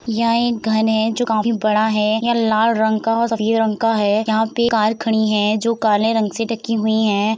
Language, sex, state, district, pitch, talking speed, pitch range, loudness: Hindi, female, Uttar Pradesh, Jalaun, 220 Hz, 230 wpm, 215-230 Hz, -17 LUFS